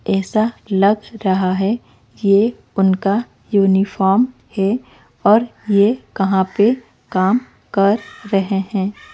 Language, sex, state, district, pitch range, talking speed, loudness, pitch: Hindi, female, Odisha, Malkangiri, 195-225 Hz, 110 wpm, -17 LUFS, 200 Hz